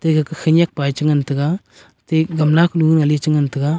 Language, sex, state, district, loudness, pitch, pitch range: Wancho, male, Arunachal Pradesh, Longding, -17 LUFS, 155 Hz, 150-160 Hz